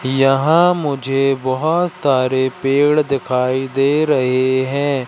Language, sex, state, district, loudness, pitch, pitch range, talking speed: Hindi, male, Madhya Pradesh, Katni, -16 LUFS, 135 Hz, 130-145 Hz, 105 wpm